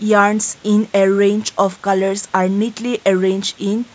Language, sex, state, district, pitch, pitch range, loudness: English, female, Nagaland, Kohima, 200 Hz, 195-215 Hz, -16 LUFS